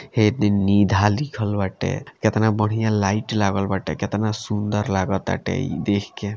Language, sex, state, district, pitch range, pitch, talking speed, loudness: Bhojpuri, male, Bihar, Gopalganj, 100-110 Hz, 105 Hz, 160 wpm, -21 LUFS